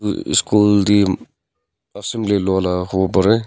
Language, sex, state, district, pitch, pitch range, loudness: Nagamese, male, Nagaland, Kohima, 100 Hz, 95-105 Hz, -17 LUFS